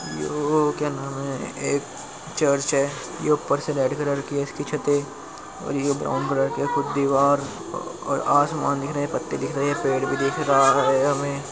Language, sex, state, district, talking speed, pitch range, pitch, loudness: Hindi, male, Uttar Pradesh, Muzaffarnagar, 210 wpm, 140-145 Hz, 140 Hz, -23 LUFS